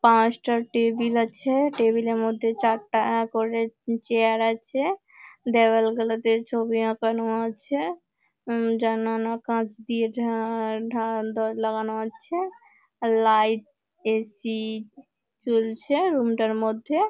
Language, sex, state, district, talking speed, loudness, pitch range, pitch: Bengali, female, West Bengal, Malda, 80 wpm, -25 LUFS, 225-235 Hz, 225 Hz